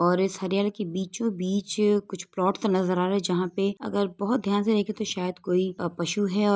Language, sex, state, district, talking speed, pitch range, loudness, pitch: Hindi, female, Uttar Pradesh, Etah, 245 wpm, 185-205 Hz, -26 LUFS, 195 Hz